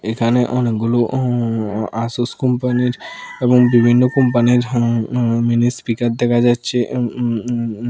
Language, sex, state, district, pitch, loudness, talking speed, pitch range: Bengali, male, Tripura, West Tripura, 120 Hz, -17 LUFS, 130 wpm, 115-125 Hz